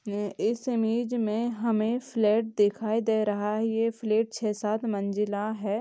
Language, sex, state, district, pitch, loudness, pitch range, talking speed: Hindi, female, Chhattisgarh, Kabirdham, 220 Hz, -27 LUFS, 210-230 Hz, 155 wpm